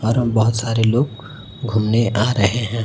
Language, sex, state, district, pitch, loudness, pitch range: Hindi, male, Chhattisgarh, Raipur, 115 Hz, -18 LUFS, 110-120 Hz